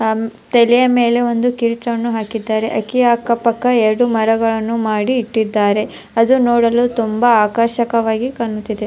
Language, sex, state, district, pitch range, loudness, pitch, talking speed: Kannada, female, Karnataka, Dharwad, 220-240 Hz, -15 LUFS, 230 Hz, 115 wpm